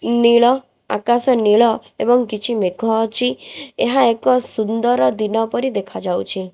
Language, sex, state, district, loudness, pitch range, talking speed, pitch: Odia, female, Odisha, Khordha, -17 LUFS, 220-245 Hz, 120 wpm, 235 Hz